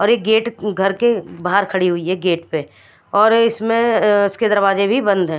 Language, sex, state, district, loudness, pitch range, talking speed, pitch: Hindi, female, Punjab, Fazilka, -16 LUFS, 185-225 Hz, 200 wpm, 200 Hz